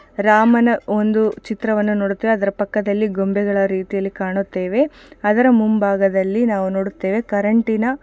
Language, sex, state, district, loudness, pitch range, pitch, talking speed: Kannada, female, Karnataka, Shimoga, -18 LUFS, 195-225 Hz, 210 Hz, 110 wpm